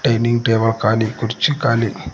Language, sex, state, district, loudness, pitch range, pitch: Kannada, male, Karnataka, Koppal, -17 LUFS, 115-120 Hz, 115 Hz